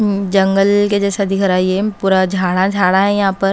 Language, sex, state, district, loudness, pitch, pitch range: Hindi, female, Haryana, Charkhi Dadri, -14 LUFS, 195 Hz, 190-200 Hz